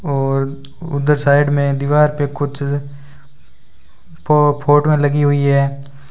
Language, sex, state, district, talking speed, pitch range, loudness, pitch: Hindi, male, Rajasthan, Bikaner, 120 wpm, 140-145 Hz, -16 LUFS, 145 Hz